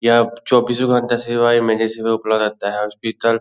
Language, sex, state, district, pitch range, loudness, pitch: Hindi, male, Bihar, Lakhisarai, 110-120 Hz, -17 LUFS, 115 Hz